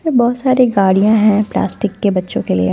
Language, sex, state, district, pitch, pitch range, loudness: Hindi, female, Punjab, Fazilka, 210 Hz, 195-245 Hz, -14 LUFS